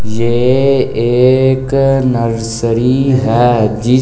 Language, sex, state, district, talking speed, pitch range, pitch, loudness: Hindi, male, Delhi, New Delhi, 90 wpm, 115-130 Hz, 125 Hz, -12 LUFS